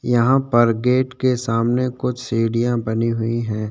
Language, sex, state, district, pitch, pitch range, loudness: Hindi, male, Chhattisgarh, Sukma, 120 Hz, 115-125 Hz, -19 LUFS